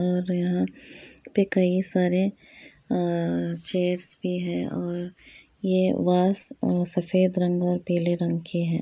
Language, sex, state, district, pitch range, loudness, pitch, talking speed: Hindi, female, Uttar Pradesh, Etah, 175-185 Hz, -24 LUFS, 180 Hz, 145 wpm